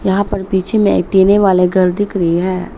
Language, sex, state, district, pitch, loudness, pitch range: Hindi, female, Arunachal Pradesh, Papum Pare, 190 Hz, -13 LUFS, 185-200 Hz